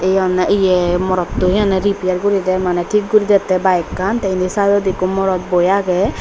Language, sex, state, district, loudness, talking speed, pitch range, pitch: Chakma, female, Tripura, Dhalai, -15 LUFS, 220 wpm, 185-200 Hz, 190 Hz